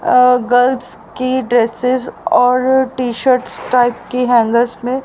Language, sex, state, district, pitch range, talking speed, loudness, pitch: Hindi, female, Haryana, Rohtak, 240-255 Hz, 120 wpm, -14 LUFS, 250 Hz